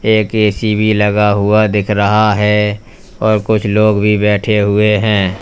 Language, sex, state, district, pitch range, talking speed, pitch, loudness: Hindi, male, Uttar Pradesh, Lalitpur, 105-110 Hz, 165 wpm, 105 Hz, -12 LUFS